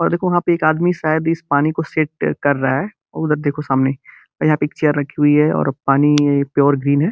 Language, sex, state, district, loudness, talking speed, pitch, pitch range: Hindi, male, Uttar Pradesh, Gorakhpur, -17 LUFS, 260 wpm, 150 Hz, 140-160 Hz